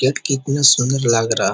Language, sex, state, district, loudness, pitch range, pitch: Hindi, male, Bihar, Jahanabad, -15 LUFS, 115-135 Hz, 130 Hz